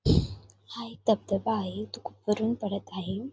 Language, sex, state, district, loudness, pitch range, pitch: Marathi, female, Maharashtra, Sindhudurg, -30 LUFS, 190-225 Hz, 210 Hz